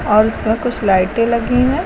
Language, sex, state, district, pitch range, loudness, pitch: Hindi, female, Uttar Pradesh, Lucknow, 215-245 Hz, -15 LUFS, 225 Hz